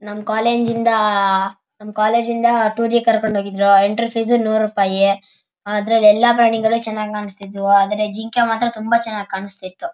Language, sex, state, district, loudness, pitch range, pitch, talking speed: Kannada, male, Karnataka, Shimoga, -17 LUFS, 200-230 Hz, 215 Hz, 145 wpm